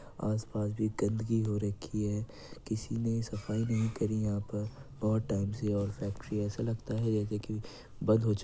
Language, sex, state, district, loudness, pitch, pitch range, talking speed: Hindi, male, Uttar Pradesh, Jyotiba Phule Nagar, -34 LUFS, 110 Hz, 105-110 Hz, 190 wpm